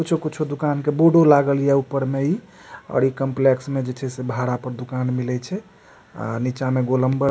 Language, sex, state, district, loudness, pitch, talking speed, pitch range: Maithili, male, Bihar, Supaul, -21 LUFS, 135 Hz, 205 wpm, 125-150 Hz